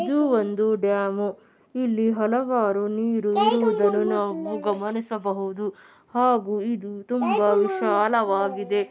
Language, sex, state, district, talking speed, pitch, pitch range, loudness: Kannada, female, Karnataka, Belgaum, 100 wpm, 210 Hz, 205-225 Hz, -23 LUFS